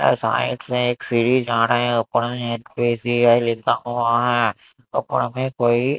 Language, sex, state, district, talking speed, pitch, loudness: Hindi, male, Maharashtra, Mumbai Suburban, 150 wpm, 120 Hz, -20 LUFS